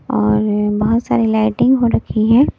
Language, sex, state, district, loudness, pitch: Hindi, female, Delhi, New Delhi, -15 LUFS, 210 Hz